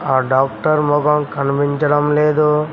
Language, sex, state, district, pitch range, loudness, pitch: Telugu, male, Telangana, Mahabubabad, 140-150 Hz, -16 LUFS, 145 Hz